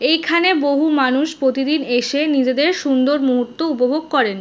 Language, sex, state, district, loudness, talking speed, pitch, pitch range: Bengali, female, West Bengal, Jhargram, -17 LUFS, 135 wpm, 285 Hz, 260-310 Hz